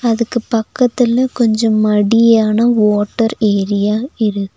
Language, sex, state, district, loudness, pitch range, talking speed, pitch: Tamil, female, Tamil Nadu, Nilgiris, -14 LUFS, 210-235 Hz, 90 wpm, 225 Hz